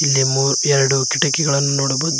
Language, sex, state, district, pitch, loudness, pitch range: Kannada, male, Karnataka, Koppal, 140 Hz, -16 LUFS, 135-145 Hz